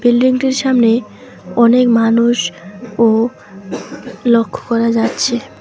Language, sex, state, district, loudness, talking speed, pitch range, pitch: Bengali, female, West Bengal, Alipurduar, -14 LUFS, 75 wpm, 225-245 Hz, 235 Hz